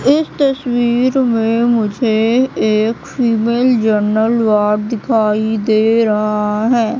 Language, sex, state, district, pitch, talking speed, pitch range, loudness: Hindi, female, Madhya Pradesh, Katni, 225 Hz, 105 wpm, 215-240 Hz, -14 LUFS